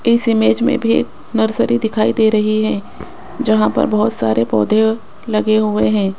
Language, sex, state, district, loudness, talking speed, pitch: Hindi, female, Rajasthan, Jaipur, -15 LUFS, 175 wpm, 215 Hz